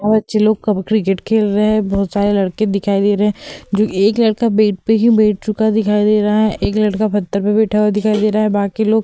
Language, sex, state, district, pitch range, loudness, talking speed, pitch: Hindi, female, Uttar Pradesh, Hamirpur, 205-215 Hz, -15 LUFS, 265 wpm, 210 Hz